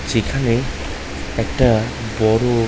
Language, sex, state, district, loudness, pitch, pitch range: Bengali, male, West Bengal, Malda, -19 LUFS, 110 Hz, 80-120 Hz